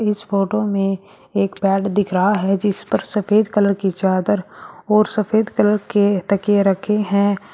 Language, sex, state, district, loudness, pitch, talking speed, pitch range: Hindi, female, Uttar Pradesh, Shamli, -18 LUFS, 205 Hz, 165 wpm, 195-210 Hz